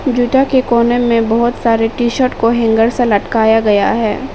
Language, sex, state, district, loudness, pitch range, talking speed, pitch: Hindi, female, Arunachal Pradesh, Papum Pare, -13 LUFS, 225-245 Hz, 195 wpm, 235 Hz